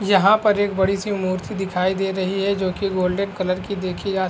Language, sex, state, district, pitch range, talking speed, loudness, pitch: Hindi, male, Bihar, Araria, 185-200 Hz, 235 wpm, -21 LUFS, 195 Hz